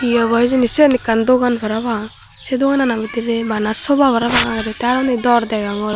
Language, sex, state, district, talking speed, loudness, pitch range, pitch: Chakma, female, Tripura, Dhalai, 190 wpm, -16 LUFS, 220-250 Hz, 235 Hz